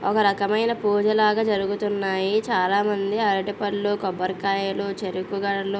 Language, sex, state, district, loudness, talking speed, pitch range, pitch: Telugu, female, Andhra Pradesh, Visakhapatnam, -23 LUFS, 125 wpm, 195-210 Hz, 200 Hz